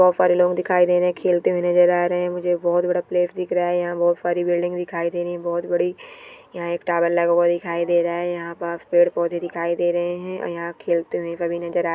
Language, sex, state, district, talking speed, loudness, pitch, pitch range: Hindi, female, Chhattisgarh, Jashpur, 265 wpm, -21 LUFS, 175 Hz, 170-180 Hz